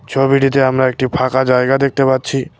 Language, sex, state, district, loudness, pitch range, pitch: Bengali, male, West Bengal, Cooch Behar, -14 LUFS, 130-135 Hz, 130 Hz